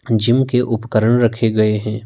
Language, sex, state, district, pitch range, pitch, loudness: Hindi, male, Himachal Pradesh, Shimla, 110-120 Hz, 115 Hz, -16 LUFS